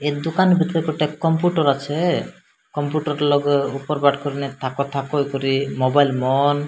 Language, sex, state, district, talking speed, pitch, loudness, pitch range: Odia, male, Odisha, Malkangiri, 160 wpm, 145 Hz, -20 LUFS, 140-155 Hz